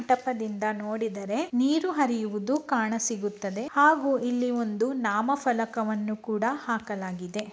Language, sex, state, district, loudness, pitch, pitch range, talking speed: Kannada, male, Karnataka, Mysore, -27 LUFS, 225 Hz, 215-255 Hz, 95 wpm